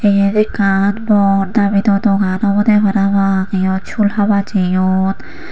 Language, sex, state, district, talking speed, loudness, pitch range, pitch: Chakma, female, Tripura, Unakoti, 120 wpm, -14 LUFS, 195-210 Hz, 200 Hz